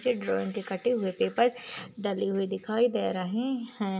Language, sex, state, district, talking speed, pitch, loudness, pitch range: Hindi, female, Maharashtra, Aurangabad, 180 wpm, 210 Hz, -29 LUFS, 195-240 Hz